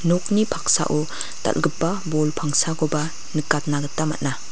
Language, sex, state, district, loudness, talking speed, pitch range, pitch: Garo, female, Meghalaya, West Garo Hills, -22 LUFS, 105 wpm, 150-170 Hz, 155 Hz